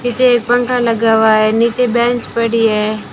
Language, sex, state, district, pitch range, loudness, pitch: Hindi, female, Rajasthan, Bikaner, 220-245 Hz, -13 LUFS, 235 Hz